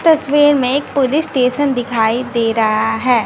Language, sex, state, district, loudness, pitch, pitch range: Hindi, female, Bihar, West Champaran, -15 LUFS, 255 Hz, 230-285 Hz